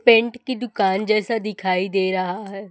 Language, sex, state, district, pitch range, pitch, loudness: Hindi, female, Chhattisgarh, Raipur, 190-230 Hz, 205 Hz, -21 LUFS